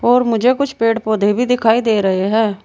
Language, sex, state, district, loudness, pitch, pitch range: Hindi, female, Uttar Pradesh, Saharanpur, -15 LUFS, 225 Hz, 215-245 Hz